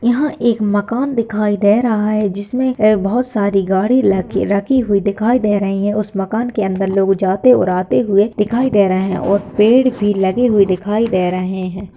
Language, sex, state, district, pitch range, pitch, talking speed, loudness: Hindi, female, Bihar, Lakhisarai, 195-235 Hz, 205 Hz, 205 wpm, -15 LUFS